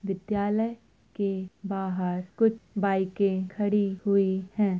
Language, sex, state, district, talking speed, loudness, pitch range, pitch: Hindi, female, Uttar Pradesh, Jyotiba Phule Nagar, 85 wpm, -28 LUFS, 190-205 Hz, 195 Hz